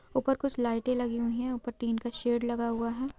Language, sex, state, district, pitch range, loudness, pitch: Hindi, female, West Bengal, Jhargram, 235-255 Hz, -31 LUFS, 240 Hz